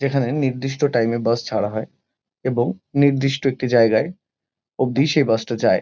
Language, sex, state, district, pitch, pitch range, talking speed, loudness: Bengali, male, West Bengal, Kolkata, 130 Hz, 115-140 Hz, 165 wpm, -20 LUFS